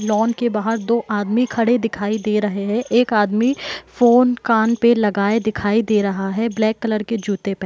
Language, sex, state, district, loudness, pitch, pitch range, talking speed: Hindi, female, Bihar, Muzaffarpur, -18 LUFS, 220 Hz, 210-235 Hz, 205 wpm